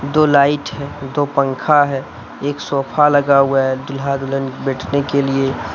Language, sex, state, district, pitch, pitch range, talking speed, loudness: Hindi, male, Jharkhand, Deoghar, 140 Hz, 135-145 Hz, 165 wpm, -17 LUFS